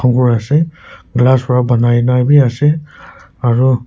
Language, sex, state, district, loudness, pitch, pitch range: Nagamese, male, Nagaland, Kohima, -13 LUFS, 125 Hz, 120-145 Hz